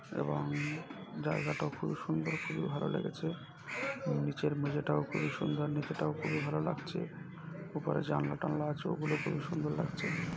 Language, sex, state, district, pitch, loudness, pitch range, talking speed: Bengali, male, West Bengal, North 24 Parganas, 155 Hz, -36 LUFS, 145-165 Hz, 135 wpm